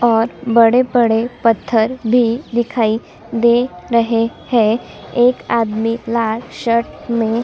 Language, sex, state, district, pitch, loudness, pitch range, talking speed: Hindi, female, Chhattisgarh, Sukma, 230 Hz, -16 LUFS, 225-240 Hz, 115 wpm